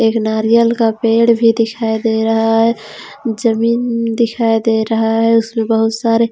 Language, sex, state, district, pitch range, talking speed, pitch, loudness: Hindi, female, Jharkhand, Ranchi, 225-230 Hz, 160 wpm, 225 Hz, -14 LUFS